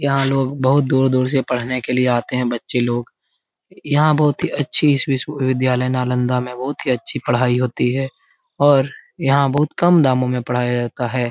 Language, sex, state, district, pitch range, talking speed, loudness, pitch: Hindi, male, Bihar, Lakhisarai, 125-140 Hz, 195 wpm, -18 LUFS, 130 Hz